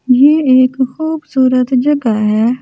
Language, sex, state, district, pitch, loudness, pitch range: Hindi, female, Delhi, New Delhi, 255 Hz, -12 LUFS, 250-285 Hz